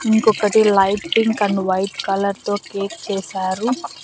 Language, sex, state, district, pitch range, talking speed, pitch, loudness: Telugu, female, Andhra Pradesh, Annamaya, 195-215 Hz, 135 wpm, 200 Hz, -19 LUFS